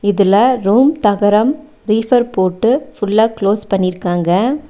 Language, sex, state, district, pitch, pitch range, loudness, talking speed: Tamil, female, Tamil Nadu, Nilgiris, 210 Hz, 200-250 Hz, -14 LUFS, 100 wpm